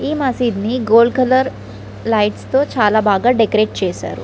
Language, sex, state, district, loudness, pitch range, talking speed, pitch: Telugu, female, Andhra Pradesh, Srikakulam, -15 LUFS, 215-260 Hz, 155 wpm, 235 Hz